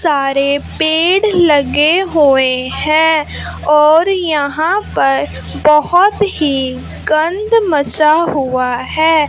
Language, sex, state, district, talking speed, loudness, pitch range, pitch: Hindi, female, Punjab, Fazilka, 90 wpm, -12 LUFS, 275-335 Hz, 305 Hz